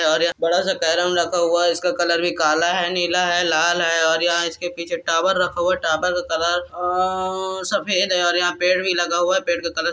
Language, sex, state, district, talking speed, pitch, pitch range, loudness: Hindi, male, Bihar, Araria, 240 wpm, 175 Hz, 170-180 Hz, -19 LUFS